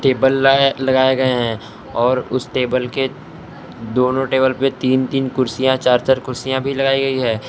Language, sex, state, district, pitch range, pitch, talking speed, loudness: Hindi, male, Jharkhand, Palamu, 125-135 Hz, 130 Hz, 175 wpm, -17 LUFS